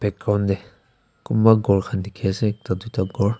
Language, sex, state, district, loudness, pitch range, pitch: Nagamese, male, Nagaland, Kohima, -21 LUFS, 100-110 Hz, 105 Hz